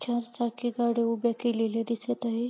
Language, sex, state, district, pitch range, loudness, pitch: Marathi, female, Maharashtra, Pune, 230-240 Hz, -29 LUFS, 235 Hz